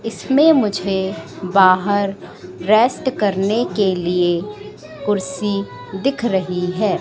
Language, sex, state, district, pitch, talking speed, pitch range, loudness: Hindi, female, Madhya Pradesh, Katni, 195 Hz, 95 wpm, 185-215 Hz, -18 LUFS